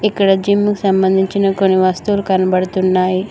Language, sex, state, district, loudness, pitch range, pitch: Telugu, female, Telangana, Mahabubabad, -14 LUFS, 185-200 Hz, 190 Hz